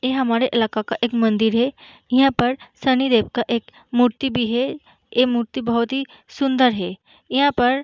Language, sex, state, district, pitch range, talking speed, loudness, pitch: Hindi, female, Bihar, Sitamarhi, 235-265 Hz, 185 wpm, -20 LUFS, 245 Hz